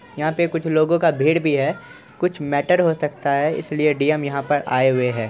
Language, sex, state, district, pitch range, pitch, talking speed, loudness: Hindi, male, Bihar, Supaul, 140-160 Hz, 150 Hz, 225 wpm, -20 LUFS